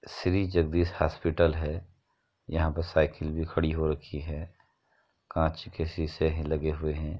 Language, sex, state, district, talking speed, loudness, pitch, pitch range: Hindi, male, Uttar Pradesh, Muzaffarnagar, 175 wpm, -30 LUFS, 80 Hz, 80-85 Hz